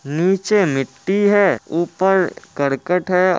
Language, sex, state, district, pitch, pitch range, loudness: Hindi, male, Bihar, Muzaffarpur, 180 Hz, 165-195 Hz, -18 LUFS